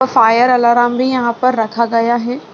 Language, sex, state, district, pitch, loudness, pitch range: Hindi, female, Bihar, Sitamarhi, 240 Hz, -13 LUFS, 235-255 Hz